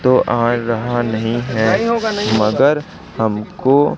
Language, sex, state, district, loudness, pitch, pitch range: Hindi, male, Madhya Pradesh, Katni, -16 LUFS, 120 Hz, 110-145 Hz